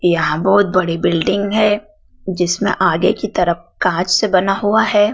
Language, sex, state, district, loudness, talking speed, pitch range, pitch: Hindi, female, Madhya Pradesh, Dhar, -15 LUFS, 165 wpm, 175-205 Hz, 190 Hz